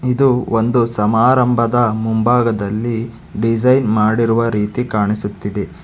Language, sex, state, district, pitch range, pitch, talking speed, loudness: Kannada, male, Karnataka, Bangalore, 110-125 Hz, 115 Hz, 80 wpm, -16 LUFS